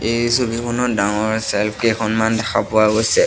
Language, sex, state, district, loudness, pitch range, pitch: Assamese, male, Assam, Sonitpur, -18 LUFS, 110-120 Hz, 110 Hz